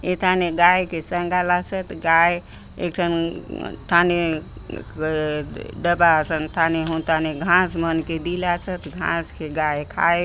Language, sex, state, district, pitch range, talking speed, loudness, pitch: Halbi, female, Chhattisgarh, Bastar, 160-175 Hz, 130 wpm, -21 LUFS, 170 Hz